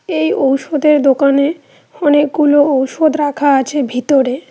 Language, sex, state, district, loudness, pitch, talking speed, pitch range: Bengali, female, West Bengal, Cooch Behar, -13 LUFS, 290 Hz, 105 wpm, 275-300 Hz